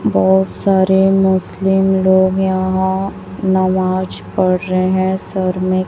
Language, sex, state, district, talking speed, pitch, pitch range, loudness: Hindi, female, Chhattisgarh, Raipur, 110 wpm, 190 Hz, 185-190 Hz, -15 LUFS